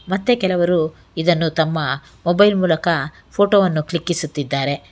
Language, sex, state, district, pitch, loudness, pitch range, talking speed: Kannada, female, Karnataka, Bangalore, 165 Hz, -18 LUFS, 155-185 Hz, 110 wpm